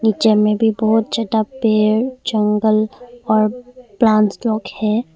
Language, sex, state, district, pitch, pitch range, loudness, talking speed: Hindi, female, Arunachal Pradesh, Longding, 220 Hz, 215-235 Hz, -17 LUFS, 130 wpm